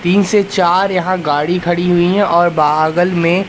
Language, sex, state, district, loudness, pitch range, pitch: Hindi, male, Madhya Pradesh, Katni, -13 LUFS, 170-185 Hz, 175 Hz